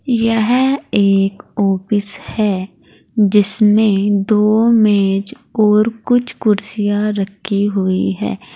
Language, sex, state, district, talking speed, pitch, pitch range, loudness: Hindi, female, Uttar Pradesh, Saharanpur, 90 wpm, 210 Hz, 195-220 Hz, -15 LUFS